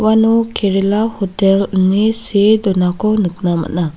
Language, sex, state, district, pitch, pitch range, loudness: Garo, female, Meghalaya, South Garo Hills, 200 Hz, 185-220 Hz, -14 LUFS